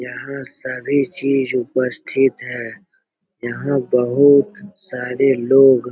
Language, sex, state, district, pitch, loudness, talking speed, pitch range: Hindi, male, Bihar, Jahanabad, 135 Hz, -17 LUFS, 100 wpm, 125-140 Hz